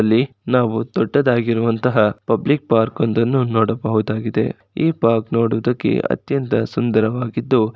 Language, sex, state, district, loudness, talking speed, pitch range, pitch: Kannada, male, Karnataka, Shimoga, -18 LUFS, 100 wpm, 110-125 Hz, 115 Hz